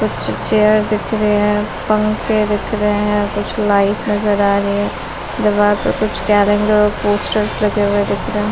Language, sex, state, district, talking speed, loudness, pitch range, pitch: Hindi, female, Uttar Pradesh, Muzaffarnagar, 185 wpm, -15 LUFS, 205-215 Hz, 210 Hz